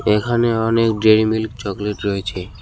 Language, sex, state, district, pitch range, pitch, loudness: Bengali, male, West Bengal, Cooch Behar, 100-115 Hz, 110 Hz, -18 LUFS